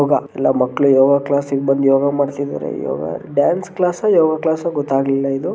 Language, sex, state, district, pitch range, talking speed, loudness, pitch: Kannada, male, Karnataka, Gulbarga, 135-155 Hz, 160 wpm, -17 LUFS, 140 Hz